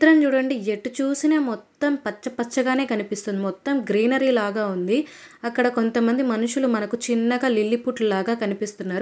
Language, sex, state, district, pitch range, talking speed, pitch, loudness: Telugu, female, Andhra Pradesh, Anantapur, 215-265 Hz, 125 wpm, 235 Hz, -23 LUFS